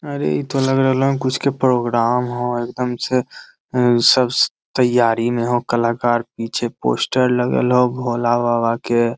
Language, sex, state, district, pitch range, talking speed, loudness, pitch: Magahi, male, Bihar, Lakhisarai, 120-130 Hz, 165 wpm, -18 LUFS, 120 Hz